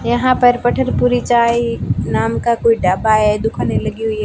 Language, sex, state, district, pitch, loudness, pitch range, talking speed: Hindi, female, Rajasthan, Barmer, 220 Hz, -15 LUFS, 145-235 Hz, 195 wpm